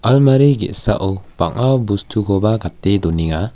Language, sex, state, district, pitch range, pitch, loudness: Garo, male, Meghalaya, West Garo Hills, 95-120 Hz, 105 Hz, -16 LUFS